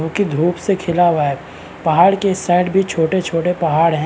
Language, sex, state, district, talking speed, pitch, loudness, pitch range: Hindi, male, Uttarakhand, Uttarkashi, 220 wpm, 175 Hz, -16 LUFS, 160-190 Hz